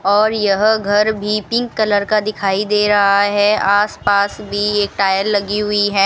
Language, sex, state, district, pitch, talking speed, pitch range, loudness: Hindi, female, Rajasthan, Bikaner, 205 Hz, 180 wpm, 200-210 Hz, -15 LUFS